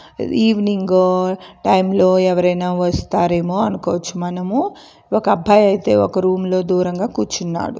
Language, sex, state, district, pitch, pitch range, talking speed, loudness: Telugu, female, Andhra Pradesh, Chittoor, 185 Hz, 180-195 Hz, 115 wpm, -17 LUFS